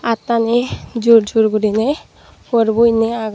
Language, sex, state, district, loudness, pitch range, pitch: Chakma, female, Tripura, Dhalai, -15 LUFS, 220-235 Hz, 230 Hz